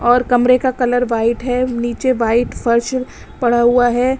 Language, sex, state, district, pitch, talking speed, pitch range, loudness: Hindi, female, Uttar Pradesh, Lalitpur, 245 Hz, 170 wpm, 240-250 Hz, -16 LUFS